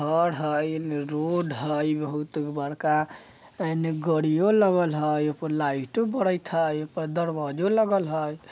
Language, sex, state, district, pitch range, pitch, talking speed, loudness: Bajjika, male, Bihar, Vaishali, 150-170 Hz, 155 Hz, 160 wpm, -26 LUFS